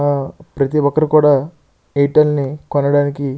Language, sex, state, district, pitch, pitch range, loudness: Telugu, male, Andhra Pradesh, Srikakulam, 145 Hz, 140-150 Hz, -15 LUFS